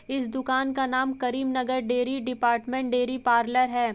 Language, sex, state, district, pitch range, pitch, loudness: Hindi, female, Uttar Pradesh, Etah, 245-260 Hz, 255 Hz, -26 LUFS